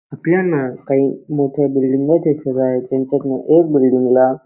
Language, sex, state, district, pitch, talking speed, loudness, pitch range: Marathi, male, Maharashtra, Dhule, 135 Hz, 135 wpm, -16 LUFS, 130-150 Hz